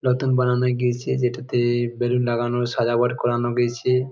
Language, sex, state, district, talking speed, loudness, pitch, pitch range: Bengali, male, West Bengal, Jalpaiguri, 130 wpm, -22 LUFS, 120 Hz, 120-125 Hz